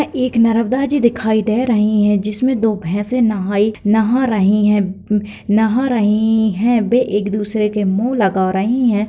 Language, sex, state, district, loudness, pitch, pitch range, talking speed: Hindi, female, Bihar, Lakhisarai, -16 LUFS, 215 Hz, 205-235 Hz, 165 wpm